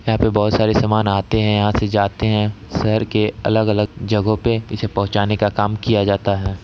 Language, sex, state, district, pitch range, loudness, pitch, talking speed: Maithili, male, Bihar, Samastipur, 105-110 Hz, -18 LUFS, 105 Hz, 205 wpm